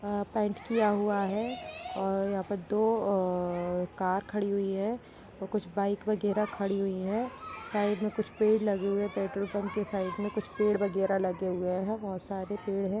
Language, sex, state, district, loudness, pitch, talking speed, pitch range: Hindi, female, Uttar Pradesh, Etah, -31 LUFS, 205 Hz, 195 wpm, 195-210 Hz